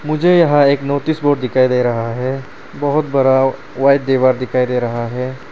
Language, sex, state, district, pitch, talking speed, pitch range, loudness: Hindi, male, Arunachal Pradesh, Papum Pare, 130 Hz, 185 wpm, 125-145 Hz, -15 LUFS